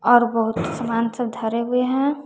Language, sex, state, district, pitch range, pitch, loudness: Hindi, female, Bihar, West Champaran, 225-250 Hz, 235 Hz, -21 LUFS